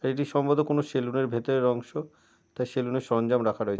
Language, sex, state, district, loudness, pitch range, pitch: Bengali, male, West Bengal, Jalpaiguri, -27 LUFS, 120-135 Hz, 130 Hz